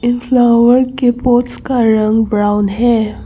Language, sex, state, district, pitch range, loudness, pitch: Hindi, female, Arunachal Pradesh, Longding, 220-245 Hz, -12 LUFS, 240 Hz